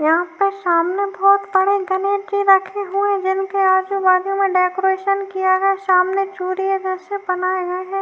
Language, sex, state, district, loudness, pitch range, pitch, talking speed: Hindi, female, Uttar Pradesh, Jyotiba Phule Nagar, -18 LUFS, 370-395 Hz, 385 Hz, 195 wpm